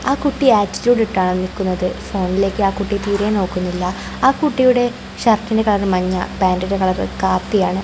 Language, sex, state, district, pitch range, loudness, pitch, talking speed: Malayalam, female, Kerala, Kozhikode, 185-220 Hz, -17 LUFS, 195 Hz, 130 wpm